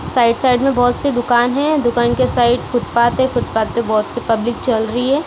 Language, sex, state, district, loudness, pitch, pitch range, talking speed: Hindi, female, Punjab, Kapurthala, -16 LUFS, 245 Hz, 235-255 Hz, 225 wpm